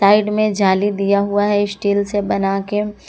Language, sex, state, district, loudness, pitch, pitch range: Hindi, female, Jharkhand, Ranchi, -17 LUFS, 205 Hz, 200-205 Hz